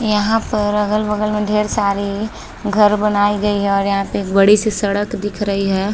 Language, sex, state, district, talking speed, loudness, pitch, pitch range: Hindi, female, Bihar, Saharsa, 200 wpm, -17 LUFS, 205 Hz, 200-210 Hz